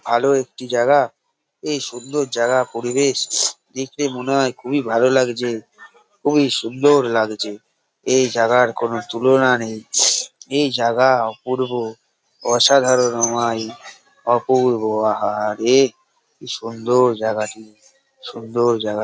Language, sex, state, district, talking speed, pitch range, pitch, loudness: Bengali, male, West Bengal, North 24 Parganas, 120 wpm, 115-130 Hz, 120 Hz, -18 LUFS